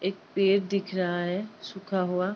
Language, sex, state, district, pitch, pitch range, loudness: Hindi, female, Uttar Pradesh, Ghazipur, 195 Hz, 180-195 Hz, -28 LUFS